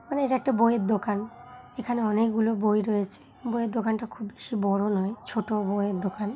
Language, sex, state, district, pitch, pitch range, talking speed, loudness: Bengali, female, West Bengal, Kolkata, 220 Hz, 205-235 Hz, 190 wpm, -27 LUFS